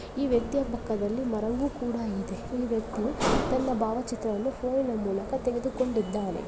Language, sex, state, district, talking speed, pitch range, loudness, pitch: Kannada, female, Karnataka, Belgaum, 120 wpm, 220-255 Hz, -29 LUFS, 240 Hz